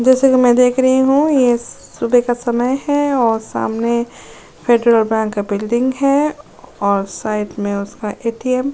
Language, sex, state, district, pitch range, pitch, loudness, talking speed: Hindi, female, Uttar Pradesh, Jyotiba Phule Nagar, 220-260 Hz, 240 Hz, -16 LUFS, 165 wpm